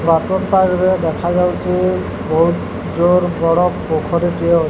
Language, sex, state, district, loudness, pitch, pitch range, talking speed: Odia, male, Odisha, Sambalpur, -16 LUFS, 170 Hz, 160-180 Hz, 130 wpm